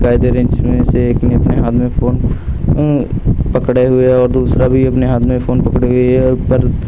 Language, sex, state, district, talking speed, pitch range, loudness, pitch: Hindi, male, Uttar Pradesh, Lucknow, 245 wpm, 125-130 Hz, -13 LUFS, 125 Hz